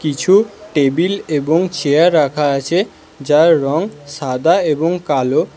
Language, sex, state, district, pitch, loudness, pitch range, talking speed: Bengali, male, Karnataka, Bangalore, 155 Hz, -15 LUFS, 145-175 Hz, 120 wpm